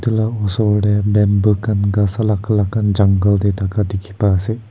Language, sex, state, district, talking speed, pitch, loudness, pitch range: Nagamese, male, Nagaland, Kohima, 205 wpm, 105 Hz, -16 LUFS, 100-110 Hz